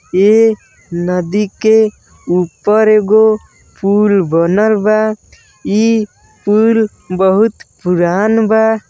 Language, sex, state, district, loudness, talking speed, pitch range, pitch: Bhojpuri, male, Uttar Pradesh, Deoria, -12 LUFS, 90 wpm, 190-220 Hz, 210 Hz